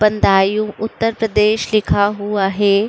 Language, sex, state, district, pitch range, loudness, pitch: Hindi, female, Uttar Pradesh, Budaun, 205-215 Hz, -16 LUFS, 210 Hz